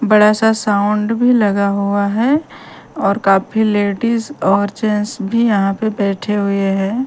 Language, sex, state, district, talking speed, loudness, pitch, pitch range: Hindi, female, Bihar, Patna, 155 wpm, -15 LUFS, 210 Hz, 200-225 Hz